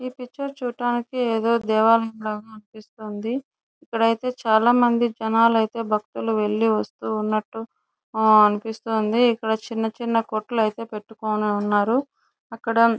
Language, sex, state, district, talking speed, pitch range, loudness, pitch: Telugu, female, Andhra Pradesh, Chittoor, 120 wpm, 215-235 Hz, -22 LUFS, 225 Hz